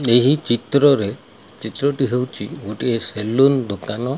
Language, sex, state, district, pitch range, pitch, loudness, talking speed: Odia, male, Odisha, Malkangiri, 115-140 Hz, 125 Hz, -19 LUFS, 100 wpm